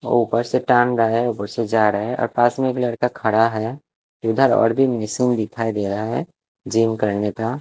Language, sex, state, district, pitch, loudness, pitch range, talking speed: Hindi, male, Chandigarh, Chandigarh, 115 Hz, -20 LUFS, 110-125 Hz, 220 wpm